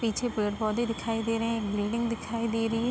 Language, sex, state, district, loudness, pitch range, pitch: Hindi, female, Uttar Pradesh, Budaun, -29 LUFS, 220-230 Hz, 225 Hz